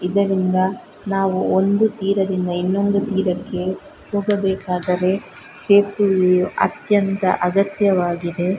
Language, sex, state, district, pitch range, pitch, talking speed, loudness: Kannada, female, Karnataka, Dakshina Kannada, 180-200 Hz, 190 Hz, 70 wpm, -19 LUFS